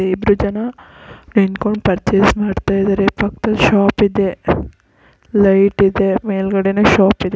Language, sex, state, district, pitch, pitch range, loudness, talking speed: Kannada, female, Karnataka, Raichur, 200 Hz, 195-210 Hz, -15 LUFS, 115 wpm